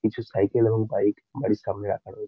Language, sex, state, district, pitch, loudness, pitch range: Bengali, male, West Bengal, North 24 Parganas, 110 Hz, -25 LUFS, 100-120 Hz